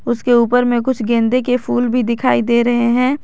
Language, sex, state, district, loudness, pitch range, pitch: Hindi, female, Jharkhand, Garhwa, -15 LUFS, 235-250 Hz, 240 Hz